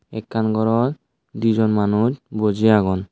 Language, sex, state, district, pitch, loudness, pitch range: Chakma, male, Tripura, Dhalai, 110 Hz, -19 LUFS, 105-115 Hz